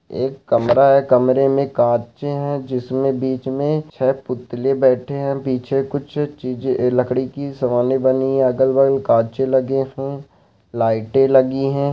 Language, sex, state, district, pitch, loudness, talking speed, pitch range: Hindi, male, Bihar, Saharsa, 130 Hz, -18 LUFS, 145 wpm, 125-135 Hz